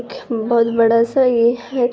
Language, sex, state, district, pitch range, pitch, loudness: Hindi, female, Bihar, Araria, 230-245 Hz, 235 Hz, -16 LUFS